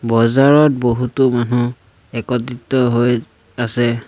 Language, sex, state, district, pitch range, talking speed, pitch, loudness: Assamese, male, Assam, Sonitpur, 115-125 Hz, 90 wpm, 120 Hz, -16 LUFS